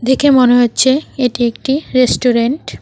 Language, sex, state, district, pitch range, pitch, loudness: Bengali, female, West Bengal, Cooch Behar, 245-265 Hz, 255 Hz, -13 LUFS